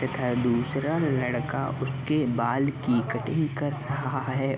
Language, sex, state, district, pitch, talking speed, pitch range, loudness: Hindi, male, Bihar, Vaishali, 135 Hz, 130 wpm, 125-145 Hz, -27 LUFS